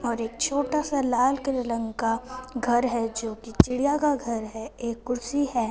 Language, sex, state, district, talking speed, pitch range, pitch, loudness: Hindi, female, Punjab, Fazilka, 190 wpm, 230-270 Hz, 245 Hz, -26 LUFS